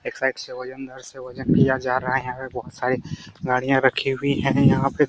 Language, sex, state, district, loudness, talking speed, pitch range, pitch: Hindi, male, Bihar, Araria, -22 LUFS, 245 wpm, 125-135 Hz, 130 Hz